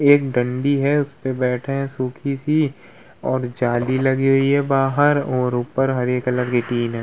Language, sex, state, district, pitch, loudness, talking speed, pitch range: Hindi, male, Uttar Pradesh, Hamirpur, 130 Hz, -20 LUFS, 180 wpm, 125-140 Hz